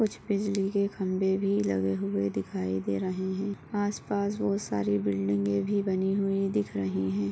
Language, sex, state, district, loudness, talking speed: Hindi, female, Maharashtra, Solapur, -29 LUFS, 170 wpm